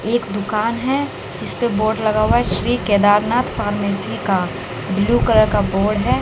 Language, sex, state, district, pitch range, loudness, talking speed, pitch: Hindi, female, Haryana, Jhajjar, 200-230 Hz, -18 LUFS, 165 wpm, 210 Hz